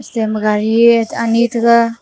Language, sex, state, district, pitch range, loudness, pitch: Wancho, female, Arunachal Pradesh, Longding, 220-235 Hz, -13 LUFS, 230 Hz